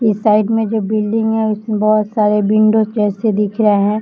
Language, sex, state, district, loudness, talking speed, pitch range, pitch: Hindi, female, Maharashtra, Chandrapur, -15 LUFS, 210 wpm, 210-220 Hz, 215 Hz